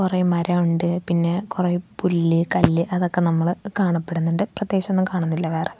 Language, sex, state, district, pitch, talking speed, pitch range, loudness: Malayalam, female, Kerala, Thiruvananthapuram, 175 Hz, 125 wpm, 170-185 Hz, -21 LUFS